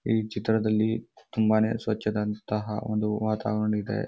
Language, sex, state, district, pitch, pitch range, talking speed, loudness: Kannada, male, Karnataka, Bijapur, 110 Hz, 105-110 Hz, 105 wpm, -27 LUFS